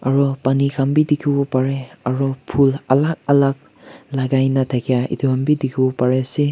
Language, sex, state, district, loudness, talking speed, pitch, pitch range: Nagamese, male, Nagaland, Kohima, -18 LUFS, 185 wpm, 135 Hz, 130-140 Hz